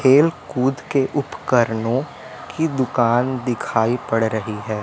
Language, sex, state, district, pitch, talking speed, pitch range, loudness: Hindi, male, Madhya Pradesh, Umaria, 125 Hz, 125 wpm, 115-135 Hz, -20 LUFS